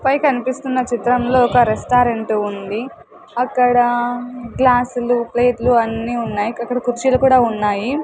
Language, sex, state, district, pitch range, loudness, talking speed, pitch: Telugu, female, Andhra Pradesh, Sri Satya Sai, 235-250 Hz, -17 LUFS, 110 wpm, 245 Hz